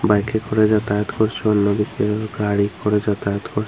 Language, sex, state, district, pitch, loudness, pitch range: Bengali, female, Tripura, Unakoti, 105 Hz, -20 LUFS, 105-110 Hz